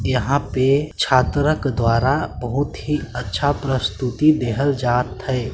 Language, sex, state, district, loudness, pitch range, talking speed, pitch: Hindi, male, Chhattisgarh, Sarguja, -20 LUFS, 125-145 Hz, 120 wpm, 130 Hz